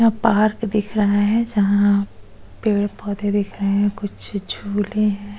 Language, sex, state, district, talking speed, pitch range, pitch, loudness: Hindi, female, Goa, North and South Goa, 145 wpm, 205-215 Hz, 205 Hz, -20 LUFS